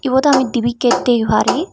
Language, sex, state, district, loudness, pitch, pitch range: Chakma, female, Tripura, Dhalai, -15 LUFS, 250 Hz, 235-265 Hz